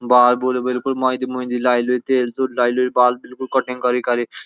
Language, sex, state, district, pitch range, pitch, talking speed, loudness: Garhwali, male, Uttarakhand, Uttarkashi, 125-130 Hz, 125 Hz, 215 wpm, -19 LUFS